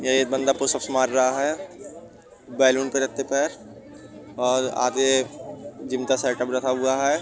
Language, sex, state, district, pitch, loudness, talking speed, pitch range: Hindi, male, Uttar Pradesh, Budaun, 130 Hz, -23 LUFS, 165 wpm, 130-135 Hz